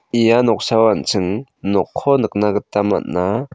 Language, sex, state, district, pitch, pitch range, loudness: Garo, male, Meghalaya, South Garo Hills, 110 Hz, 100-120 Hz, -17 LUFS